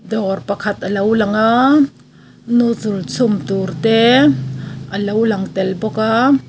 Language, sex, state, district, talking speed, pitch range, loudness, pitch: Mizo, female, Mizoram, Aizawl, 150 wpm, 195-230 Hz, -15 LUFS, 210 Hz